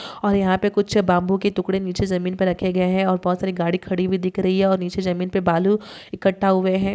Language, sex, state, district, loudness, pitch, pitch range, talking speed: Hindi, female, Chhattisgarh, Bilaspur, -21 LUFS, 185 Hz, 185-195 Hz, 260 wpm